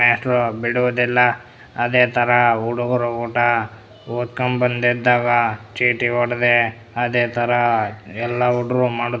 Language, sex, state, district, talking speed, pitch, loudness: Kannada, male, Karnataka, Bellary, 100 wpm, 120 Hz, -18 LUFS